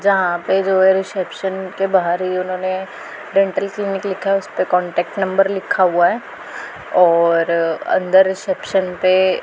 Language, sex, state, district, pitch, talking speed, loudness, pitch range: Hindi, female, Punjab, Pathankot, 190 Hz, 155 wpm, -17 LUFS, 180-195 Hz